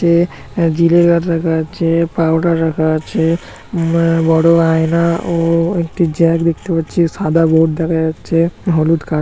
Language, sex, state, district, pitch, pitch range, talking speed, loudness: Bengali, male, West Bengal, Paschim Medinipur, 165 Hz, 160-170 Hz, 135 wpm, -14 LUFS